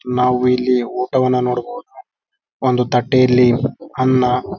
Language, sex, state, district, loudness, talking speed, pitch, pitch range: Kannada, male, Karnataka, Raichur, -16 LUFS, 105 wpm, 125 Hz, 125-130 Hz